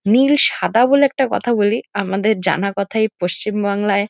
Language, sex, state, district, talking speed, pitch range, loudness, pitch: Bengali, female, West Bengal, North 24 Parganas, 175 wpm, 200-240 Hz, -17 LUFS, 210 Hz